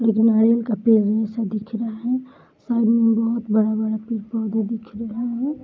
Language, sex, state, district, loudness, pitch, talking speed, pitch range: Hindi, female, Bihar, Bhagalpur, -21 LUFS, 225 Hz, 160 wpm, 220-230 Hz